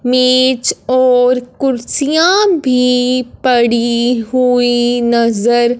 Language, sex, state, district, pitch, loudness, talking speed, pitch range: Hindi, female, Punjab, Fazilka, 250 Hz, -12 LUFS, 70 wpm, 240-255 Hz